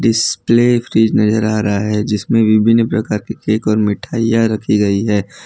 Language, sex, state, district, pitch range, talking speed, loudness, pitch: Hindi, male, Gujarat, Valsad, 105-115 Hz, 185 wpm, -14 LUFS, 110 Hz